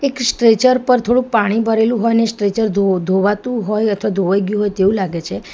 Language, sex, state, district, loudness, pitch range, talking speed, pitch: Gujarati, female, Gujarat, Valsad, -16 LUFS, 200-235 Hz, 195 wpm, 220 Hz